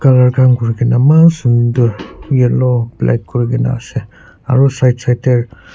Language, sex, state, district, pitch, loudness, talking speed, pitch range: Nagamese, male, Nagaland, Kohima, 125 Hz, -12 LUFS, 145 wpm, 120-130 Hz